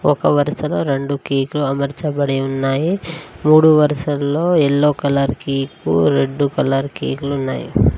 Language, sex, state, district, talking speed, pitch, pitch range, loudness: Telugu, female, Telangana, Mahabubabad, 120 wpm, 140 Hz, 135-150 Hz, -17 LUFS